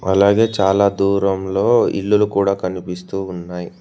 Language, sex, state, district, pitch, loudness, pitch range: Telugu, male, Telangana, Mahabubabad, 95 Hz, -17 LUFS, 90-100 Hz